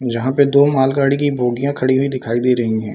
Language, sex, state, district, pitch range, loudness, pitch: Hindi, male, Bihar, Samastipur, 120-140 Hz, -16 LUFS, 130 Hz